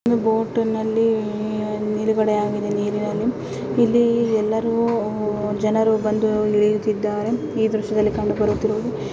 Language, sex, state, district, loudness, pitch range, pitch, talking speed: Kannada, female, Karnataka, Dakshina Kannada, -21 LUFS, 210-225 Hz, 215 Hz, 100 wpm